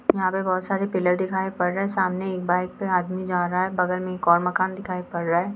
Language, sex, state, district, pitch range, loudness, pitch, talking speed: Hindi, female, Jharkhand, Jamtara, 180-190 Hz, -24 LUFS, 185 Hz, 280 wpm